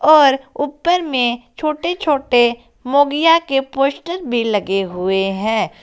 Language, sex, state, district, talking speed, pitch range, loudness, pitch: Hindi, female, Jharkhand, Garhwa, 125 wpm, 225-300 Hz, -17 LUFS, 270 Hz